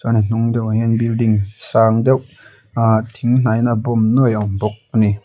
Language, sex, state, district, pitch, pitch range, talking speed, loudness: Mizo, male, Mizoram, Aizawl, 115 Hz, 110-115 Hz, 250 wpm, -16 LUFS